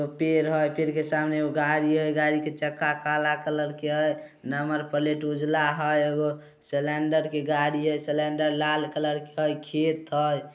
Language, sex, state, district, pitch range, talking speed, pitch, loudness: Hindi, male, Bihar, Samastipur, 150-155 Hz, 170 wpm, 150 Hz, -26 LUFS